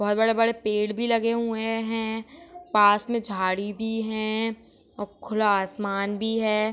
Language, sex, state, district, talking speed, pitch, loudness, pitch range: Hindi, female, Jharkhand, Sahebganj, 160 wpm, 220 Hz, -25 LUFS, 205-225 Hz